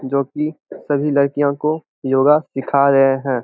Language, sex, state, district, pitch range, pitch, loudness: Hindi, male, Bihar, Samastipur, 135-150 Hz, 140 Hz, -17 LUFS